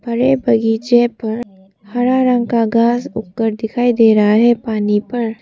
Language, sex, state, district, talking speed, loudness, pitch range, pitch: Hindi, female, Arunachal Pradesh, Papum Pare, 165 wpm, -15 LUFS, 220-240 Hz, 230 Hz